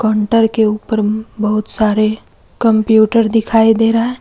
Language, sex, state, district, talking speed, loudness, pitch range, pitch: Hindi, female, Jharkhand, Deoghar, 140 wpm, -13 LUFS, 215-225 Hz, 220 Hz